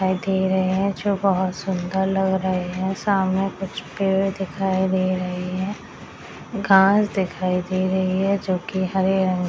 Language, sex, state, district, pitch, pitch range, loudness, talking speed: Hindi, female, Bihar, Madhepura, 190 Hz, 185-195 Hz, -22 LUFS, 165 wpm